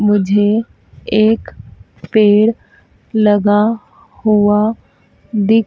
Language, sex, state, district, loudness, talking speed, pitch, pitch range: Hindi, female, Madhya Pradesh, Dhar, -14 LUFS, 65 wpm, 210 Hz, 205-220 Hz